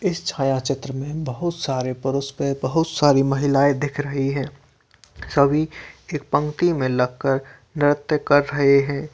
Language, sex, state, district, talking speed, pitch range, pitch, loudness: Hindi, male, Uttar Pradesh, Varanasi, 155 wpm, 135-145 Hz, 140 Hz, -21 LUFS